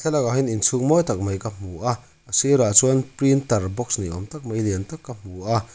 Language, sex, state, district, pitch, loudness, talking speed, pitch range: Mizo, male, Mizoram, Aizawl, 120 Hz, -21 LUFS, 240 wpm, 100-135 Hz